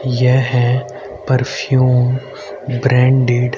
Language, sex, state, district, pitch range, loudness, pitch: Hindi, male, Haryana, Rohtak, 125-130 Hz, -15 LUFS, 125 Hz